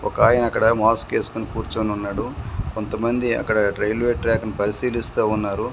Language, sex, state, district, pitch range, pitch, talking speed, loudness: Telugu, male, Telangana, Komaram Bheem, 105-115 Hz, 110 Hz, 115 wpm, -21 LUFS